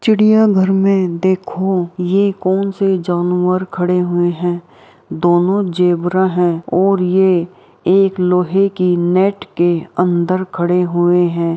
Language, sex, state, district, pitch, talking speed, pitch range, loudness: Hindi, female, Bihar, Araria, 180 Hz, 135 wpm, 175-190 Hz, -15 LUFS